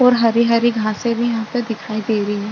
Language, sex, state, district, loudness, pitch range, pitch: Hindi, female, Uttar Pradesh, Budaun, -18 LUFS, 215-235 Hz, 230 Hz